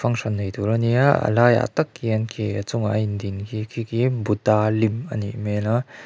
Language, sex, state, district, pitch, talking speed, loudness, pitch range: Mizo, male, Mizoram, Aizawl, 110 Hz, 225 wpm, -22 LUFS, 105-120 Hz